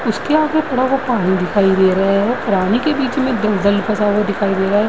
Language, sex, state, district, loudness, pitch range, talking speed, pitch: Hindi, female, Uttar Pradesh, Varanasi, -16 LUFS, 195-255 Hz, 245 wpm, 210 Hz